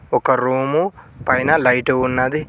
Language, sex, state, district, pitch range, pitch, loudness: Telugu, male, Telangana, Mahabubabad, 130-150 Hz, 130 Hz, -17 LUFS